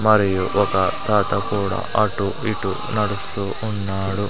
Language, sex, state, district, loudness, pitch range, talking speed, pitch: Telugu, male, Andhra Pradesh, Sri Satya Sai, -21 LUFS, 95-105 Hz, 110 wpm, 100 Hz